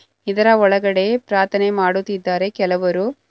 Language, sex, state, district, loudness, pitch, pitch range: Kannada, female, Karnataka, Bangalore, -17 LUFS, 195 Hz, 190-205 Hz